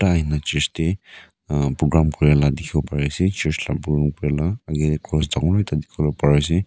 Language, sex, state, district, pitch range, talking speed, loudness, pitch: Nagamese, male, Nagaland, Kohima, 75-80 Hz, 215 wpm, -21 LUFS, 75 Hz